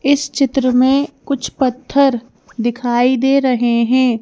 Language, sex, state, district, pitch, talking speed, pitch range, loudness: Hindi, female, Madhya Pradesh, Bhopal, 260 Hz, 130 wpm, 245-275 Hz, -15 LUFS